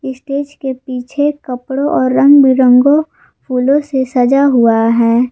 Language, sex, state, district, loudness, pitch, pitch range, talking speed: Hindi, female, Jharkhand, Garhwa, -12 LUFS, 265 Hz, 250-280 Hz, 135 wpm